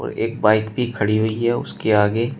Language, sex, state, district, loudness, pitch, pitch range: Hindi, male, Uttar Pradesh, Shamli, -19 LUFS, 110 Hz, 110-120 Hz